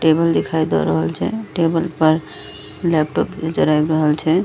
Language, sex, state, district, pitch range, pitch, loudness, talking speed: Maithili, female, Bihar, Madhepura, 150-165 Hz, 160 Hz, -18 LUFS, 160 wpm